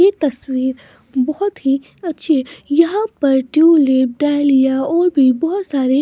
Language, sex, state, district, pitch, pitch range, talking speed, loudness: Hindi, female, Maharashtra, Washim, 285 Hz, 265-330 Hz, 150 wpm, -16 LUFS